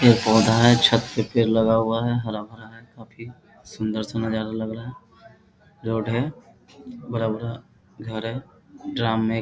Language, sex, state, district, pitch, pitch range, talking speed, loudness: Hindi, male, Bihar, Bhagalpur, 115 Hz, 110-120 Hz, 165 wpm, -22 LUFS